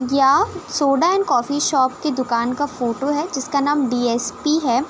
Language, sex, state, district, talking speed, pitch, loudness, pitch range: Hindi, female, Uttar Pradesh, Budaun, 170 wpm, 275 Hz, -19 LUFS, 250-300 Hz